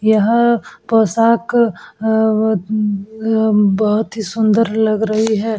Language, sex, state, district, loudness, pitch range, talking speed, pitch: Hindi, female, Uttar Pradesh, Etah, -15 LUFS, 215-225 Hz, 140 wpm, 220 Hz